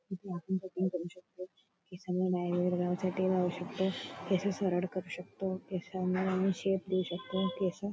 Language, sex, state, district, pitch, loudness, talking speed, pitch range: Marathi, female, Maharashtra, Nagpur, 185 Hz, -34 LUFS, 130 wpm, 180-190 Hz